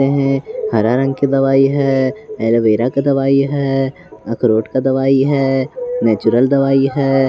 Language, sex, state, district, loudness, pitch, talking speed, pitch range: Hindi, male, Bihar, West Champaran, -15 LUFS, 135 Hz, 130 wpm, 125-140 Hz